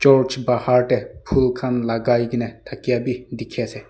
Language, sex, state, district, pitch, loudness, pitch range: Nagamese, male, Nagaland, Dimapur, 125 Hz, -21 LUFS, 120-130 Hz